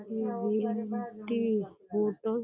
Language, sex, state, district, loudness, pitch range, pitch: Hindi, female, Uttar Pradesh, Deoria, -32 LUFS, 215-230 Hz, 220 Hz